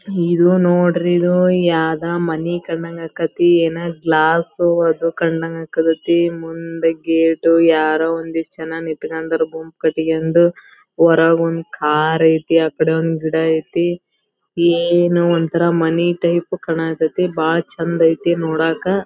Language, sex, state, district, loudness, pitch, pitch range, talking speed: Kannada, female, Karnataka, Belgaum, -16 LUFS, 165 Hz, 160-170 Hz, 125 wpm